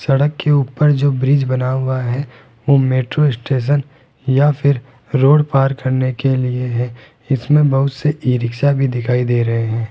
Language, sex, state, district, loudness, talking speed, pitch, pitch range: Hindi, male, Rajasthan, Jaipur, -16 LUFS, 175 wpm, 135 Hz, 125-140 Hz